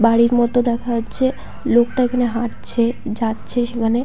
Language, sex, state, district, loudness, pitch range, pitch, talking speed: Bengali, female, West Bengal, Paschim Medinipur, -19 LUFS, 230-245 Hz, 240 Hz, 135 wpm